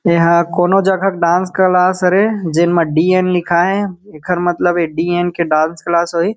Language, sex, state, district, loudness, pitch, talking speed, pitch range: Chhattisgarhi, male, Chhattisgarh, Kabirdham, -14 LUFS, 175 Hz, 225 wpm, 170-185 Hz